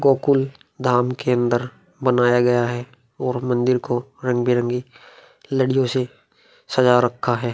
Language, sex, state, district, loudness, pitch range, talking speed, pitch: Hindi, male, Uttar Pradesh, Muzaffarnagar, -20 LUFS, 120-130 Hz, 135 wpm, 125 Hz